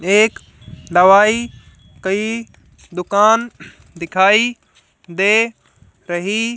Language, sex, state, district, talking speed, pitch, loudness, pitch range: Hindi, female, Haryana, Jhajjar, 65 wpm, 200 Hz, -15 LUFS, 180-225 Hz